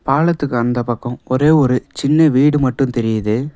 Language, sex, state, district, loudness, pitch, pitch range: Tamil, male, Tamil Nadu, Nilgiris, -16 LUFS, 130 Hz, 120-150 Hz